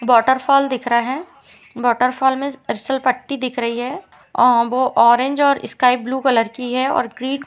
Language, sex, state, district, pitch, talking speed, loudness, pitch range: Hindi, female, Uttar Pradesh, Jalaun, 255 Hz, 175 wpm, -17 LUFS, 240-265 Hz